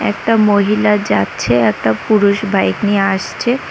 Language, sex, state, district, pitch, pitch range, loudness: Bengali, female, West Bengal, Cooch Behar, 205 Hz, 190-210 Hz, -14 LUFS